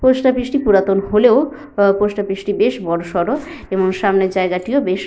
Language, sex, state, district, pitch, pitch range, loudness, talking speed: Bengali, female, Jharkhand, Sahebganj, 200 Hz, 190-260 Hz, -16 LUFS, 190 wpm